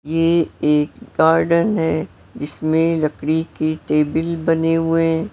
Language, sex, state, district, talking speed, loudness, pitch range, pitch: Hindi, female, Maharashtra, Mumbai Suburban, 125 wpm, -18 LUFS, 155-165 Hz, 160 Hz